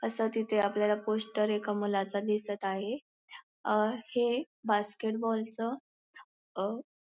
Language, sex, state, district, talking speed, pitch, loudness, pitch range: Marathi, female, Maharashtra, Pune, 110 wpm, 215 Hz, -32 LUFS, 210-225 Hz